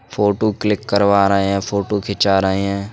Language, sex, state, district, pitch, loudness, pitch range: Hindi, male, Uttar Pradesh, Budaun, 100 Hz, -17 LUFS, 100-105 Hz